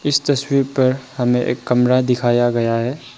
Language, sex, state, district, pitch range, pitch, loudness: Hindi, male, Arunachal Pradesh, Papum Pare, 120-135 Hz, 125 Hz, -17 LUFS